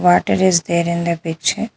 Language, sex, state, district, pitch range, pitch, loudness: English, female, Telangana, Hyderabad, 170-175 Hz, 170 Hz, -17 LUFS